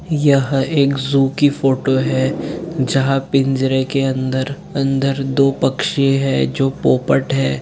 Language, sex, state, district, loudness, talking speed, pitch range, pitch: Hindi, male, Jharkhand, Sahebganj, -17 LUFS, 135 wpm, 130-140 Hz, 135 Hz